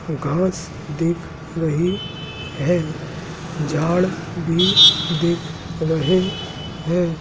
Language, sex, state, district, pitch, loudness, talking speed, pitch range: Hindi, male, Madhya Pradesh, Dhar, 165 Hz, -19 LUFS, 75 wpm, 160-170 Hz